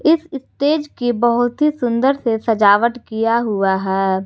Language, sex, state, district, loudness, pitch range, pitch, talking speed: Hindi, female, Jharkhand, Garhwa, -17 LUFS, 220-275 Hz, 235 Hz, 155 wpm